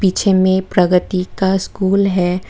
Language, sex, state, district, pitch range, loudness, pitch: Hindi, female, Tripura, West Tripura, 180-195 Hz, -15 LUFS, 190 Hz